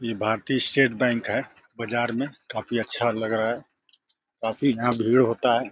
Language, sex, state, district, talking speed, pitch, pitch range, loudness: Hindi, male, Uttar Pradesh, Deoria, 180 wpm, 115 Hz, 115-125 Hz, -25 LUFS